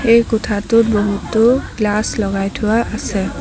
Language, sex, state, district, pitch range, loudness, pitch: Assamese, female, Assam, Sonitpur, 205-230 Hz, -16 LUFS, 215 Hz